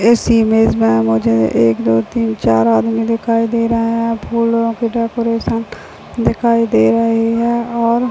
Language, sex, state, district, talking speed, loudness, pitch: Hindi, female, Chhattisgarh, Bilaspur, 155 wpm, -14 LUFS, 230 Hz